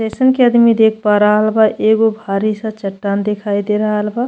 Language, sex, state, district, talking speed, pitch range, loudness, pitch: Bhojpuri, female, Uttar Pradesh, Ghazipur, 210 wpm, 210-220 Hz, -14 LUFS, 215 Hz